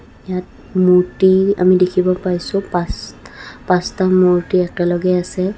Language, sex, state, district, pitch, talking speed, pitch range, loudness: Assamese, female, Assam, Kamrup Metropolitan, 185 Hz, 95 wpm, 180-185 Hz, -16 LUFS